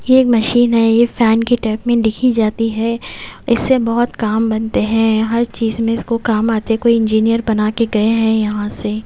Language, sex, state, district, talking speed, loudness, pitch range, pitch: Hindi, female, Haryana, Jhajjar, 210 wpm, -15 LUFS, 220-235 Hz, 225 Hz